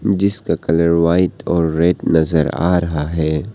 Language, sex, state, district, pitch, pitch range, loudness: Hindi, male, Arunachal Pradesh, Papum Pare, 85 Hz, 80-90 Hz, -16 LUFS